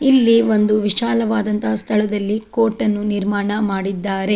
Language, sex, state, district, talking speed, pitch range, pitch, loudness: Kannada, female, Karnataka, Dakshina Kannada, 110 wpm, 205-225 Hz, 210 Hz, -17 LUFS